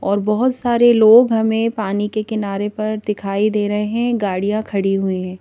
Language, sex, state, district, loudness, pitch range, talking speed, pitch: Hindi, female, Madhya Pradesh, Bhopal, -17 LUFS, 200-225 Hz, 190 wpm, 210 Hz